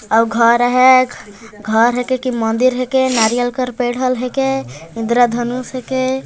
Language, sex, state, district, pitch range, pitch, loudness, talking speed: Hindi, female, Chhattisgarh, Jashpur, 230-255 Hz, 245 Hz, -15 LUFS, 165 wpm